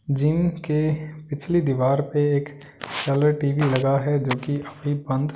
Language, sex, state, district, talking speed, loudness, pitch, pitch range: Hindi, male, Delhi, New Delhi, 155 wpm, -23 LUFS, 145 Hz, 140-150 Hz